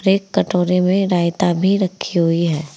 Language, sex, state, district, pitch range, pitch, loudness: Hindi, female, Uttar Pradesh, Saharanpur, 170-190 Hz, 180 Hz, -17 LUFS